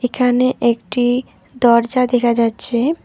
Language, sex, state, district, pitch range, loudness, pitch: Bengali, female, West Bengal, Alipurduar, 235-250 Hz, -16 LUFS, 245 Hz